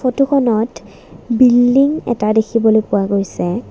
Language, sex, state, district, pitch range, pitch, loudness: Assamese, female, Assam, Kamrup Metropolitan, 220-255 Hz, 235 Hz, -14 LUFS